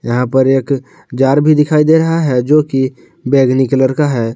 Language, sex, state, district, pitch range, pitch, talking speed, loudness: Hindi, male, Jharkhand, Garhwa, 130-150 Hz, 135 Hz, 190 wpm, -12 LUFS